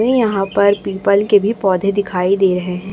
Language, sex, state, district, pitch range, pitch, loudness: Hindi, female, Chhattisgarh, Raipur, 190-205 Hz, 200 Hz, -15 LUFS